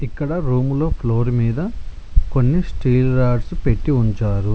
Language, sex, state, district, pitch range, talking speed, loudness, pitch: Telugu, male, Telangana, Mahabubabad, 115-145 Hz, 120 wpm, -19 LUFS, 125 Hz